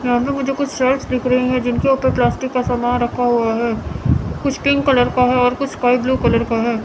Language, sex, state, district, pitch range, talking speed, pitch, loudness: Hindi, female, Chandigarh, Chandigarh, 245-265 Hz, 245 wpm, 250 Hz, -17 LUFS